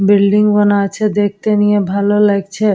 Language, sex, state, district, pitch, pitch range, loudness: Bengali, female, West Bengal, Jalpaiguri, 205 Hz, 200-210 Hz, -13 LUFS